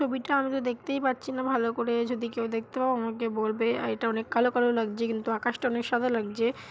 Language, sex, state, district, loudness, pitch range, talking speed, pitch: Bengali, female, West Bengal, Paschim Medinipur, -28 LUFS, 230-255 Hz, 225 wpm, 235 Hz